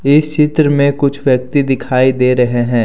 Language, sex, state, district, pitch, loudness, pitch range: Hindi, male, Jharkhand, Deoghar, 135 Hz, -13 LUFS, 125-145 Hz